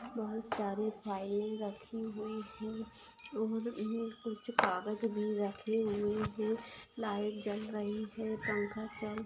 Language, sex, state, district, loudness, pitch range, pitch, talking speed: Hindi, female, Maharashtra, Chandrapur, -38 LUFS, 210-225 Hz, 215 Hz, 130 wpm